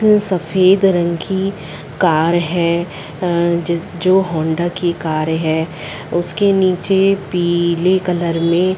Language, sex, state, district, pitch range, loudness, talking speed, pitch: Hindi, female, Chhattisgarh, Sarguja, 165-185 Hz, -16 LUFS, 125 wpm, 175 Hz